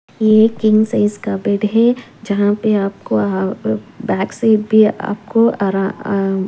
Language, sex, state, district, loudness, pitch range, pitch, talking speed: Hindi, female, Punjab, Pathankot, -16 LUFS, 195-220 Hz, 210 Hz, 165 wpm